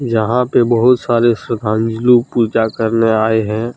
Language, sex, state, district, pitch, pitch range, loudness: Hindi, male, Jharkhand, Deoghar, 115 Hz, 110-120 Hz, -14 LUFS